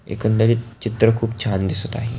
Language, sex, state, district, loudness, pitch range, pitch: Marathi, male, Maharashtra, Pune, -20 LUFS, 110-115 Hz, 115 Hz